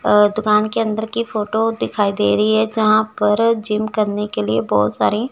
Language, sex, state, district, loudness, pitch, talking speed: Hindi, female, Chandigarh, Chandigarh, -17 LUFS, 210 Hz, 205 wpm